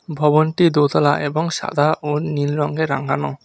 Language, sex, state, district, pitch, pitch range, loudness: Bengali, male, West Bengal, Alipurduar, 150 Hz, 145-155 Hz, -18 LUFS